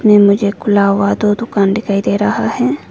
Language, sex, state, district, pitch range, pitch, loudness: Hindi, female, Arunachal Pradesh, Lower Dibang Valley, 200-210 Hz, 205 Hz, -13 LUFS